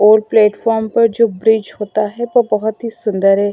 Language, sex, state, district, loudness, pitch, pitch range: Hindi, female, Maharashtra, Mumbai Suburban, -15 LUFS, 220 Hz, 210-230 Hz